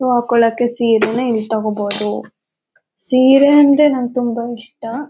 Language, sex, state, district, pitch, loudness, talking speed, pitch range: Kannada, female, Karnataka, Mysore, 240 Hz, -14 LUFS, 115 wpm, 225-255 Hz